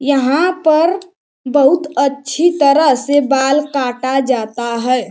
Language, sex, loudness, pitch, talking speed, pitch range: Hindi, male, -14 LUFS, 280 Hz, 115 wpm, 260-310 Hz